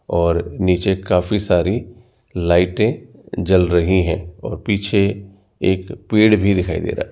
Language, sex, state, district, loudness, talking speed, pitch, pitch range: Hindi, male, Rajasthan, Jaipur, -18 LUFS, 145 wpm, 95 Hz, 90-105 Hz